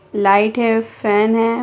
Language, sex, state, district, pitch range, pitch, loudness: Hindi, female, Bihar, Sitamarhi, 205-230 Hz, 225 Hz, -16 LUFS